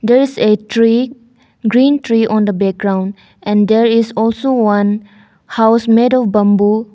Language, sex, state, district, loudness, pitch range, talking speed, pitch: English, female, Arunachal Pradesh, Longding, -13 LUFS, 210-235 Hz, 155 wpm, 225 Hz